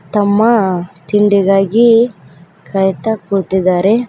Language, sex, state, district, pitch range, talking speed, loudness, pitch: Kannada, female, Karnataka, Koppal, 185-220 Hz, 60 wpm, -13 LUFS, 195 Hz